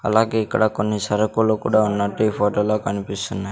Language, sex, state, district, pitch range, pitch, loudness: Telugu, male, Andhra Pradesh, Sri Satya Sai, 100-110 Hz, 105 Hz, -20 LUFS